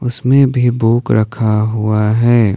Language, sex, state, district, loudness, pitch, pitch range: Hindi, male, Jharkhand, Ranchi, -13 LUFS, 115 Hz, 110-120 Hz